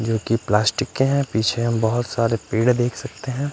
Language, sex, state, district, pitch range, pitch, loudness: Hindi, male, Punjab, Fazilka, 110-130 Hz, 115 Hz, -21 LUFS